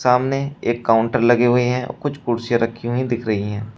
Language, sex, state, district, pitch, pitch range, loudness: Hindi, male, Uttar Pradesh, Shamli, 120 Hz, 115-125 Hz, -19 LUFS